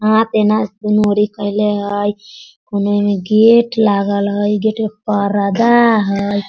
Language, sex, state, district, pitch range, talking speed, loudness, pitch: Hindi, female, Bihar, Sitamarhi, 205-215 Hz, 110 wpm, -14 LUFS, 210 Hz